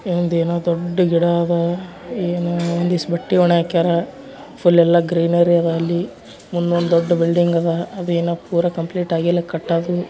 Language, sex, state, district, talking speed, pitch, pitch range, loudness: Kannada, male, Karnataka, Bijapur, 135 wpm, 170 Hz, 170-175 Hz, -18 LUFS